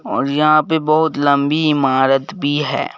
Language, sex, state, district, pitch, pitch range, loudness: Hindi, male, Madhya Pradesh, Bhopal, 145 Hz, 140-155 Hz, -15 LUFS